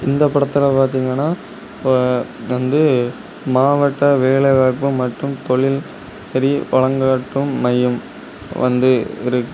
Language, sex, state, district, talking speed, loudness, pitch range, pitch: Tamil, male, Tamil Nadu, Kanyakumari, 95 wpm, -17 LUFS, 125-140 Hz, 130 Hz